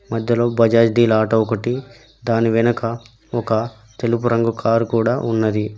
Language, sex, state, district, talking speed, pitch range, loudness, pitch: Telugu, male, Telangana, Mahabubabad, 135 wpm, 115-120 Hz, -18 LUFS, 115 Hz